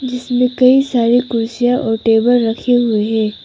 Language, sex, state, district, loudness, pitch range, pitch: Hindi, female, Arunachal Pradesh, Papum Pare, -14 LUFS, 225-250 Hz, 245 Hz